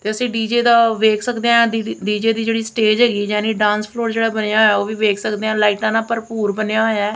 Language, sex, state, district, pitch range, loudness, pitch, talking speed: Punjabi, female, Punjab, Kapurthala, 210-225 Hz, -17 LUFS, 220 Hz, 245 wpm